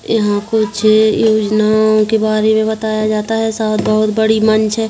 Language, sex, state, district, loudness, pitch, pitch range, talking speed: Hindi, female, Chhattisgarh, Kabirdham, -13 LUFS, 215 Hz, 215-220 Hz, 170 wpm